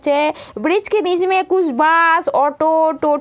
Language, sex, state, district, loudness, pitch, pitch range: Hindi, female, Uttar Pradesh, Deoria, -15 LUFS, 320 Hz, 300-365 Hz